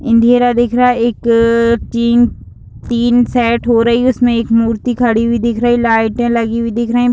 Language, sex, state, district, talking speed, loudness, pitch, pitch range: Hindi, female, Uttar Pradesh, Deoria, 200 wpm, -12 LUFS, 235 Hz, 230-240 Hz